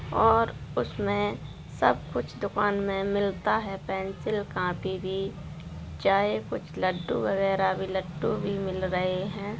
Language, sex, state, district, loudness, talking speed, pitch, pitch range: Hindi, female, Bihar, Vaishali, -28 LUFS, 130 wpm, 195 Hz, 185-200 Hz